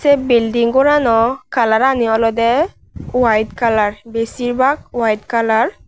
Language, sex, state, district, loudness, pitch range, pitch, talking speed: Chakma, female, Tripura, West Tripura, -15 LUFS, 225-255 Hz, 235 Hz, 110 wpm